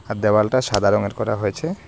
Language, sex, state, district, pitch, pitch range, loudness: Bengali, male, West Bengal, Alipurduar, 105 Hz, 100-105 Hz, -20 LUFS